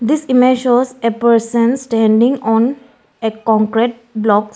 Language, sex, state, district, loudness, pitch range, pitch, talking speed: English, female, Arunachal Pradesh, Lower Dibang Valley, -14 LUFS, 220-250 Hz, 235 Hz, 130 wpm